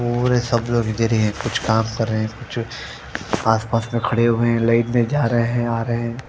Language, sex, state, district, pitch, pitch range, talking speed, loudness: Hindi, female, Punjab, Fazilka, 115 Hz, 110-120 Hz, 220 wpm, -20 LUFS